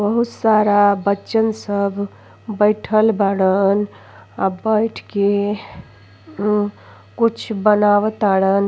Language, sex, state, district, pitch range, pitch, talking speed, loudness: Bhojpuri, female, Uttar Pradesh, Ghazipur, 195-215 Hz, 205 Hz, 90 wpm, -18 LUFS